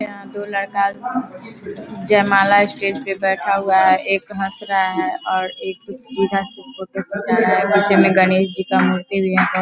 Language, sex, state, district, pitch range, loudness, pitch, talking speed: Hindi, female, Bihar, Vaishali, 190-205 Hz, -17 LUFS, 195 Hz, 180 wpm